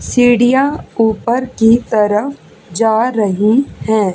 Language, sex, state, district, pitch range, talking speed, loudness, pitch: Hindi, female, Haryana, Charkhi Dadri, 215-245 Hz, 100 wpm, -13 LUFS, 225 Hz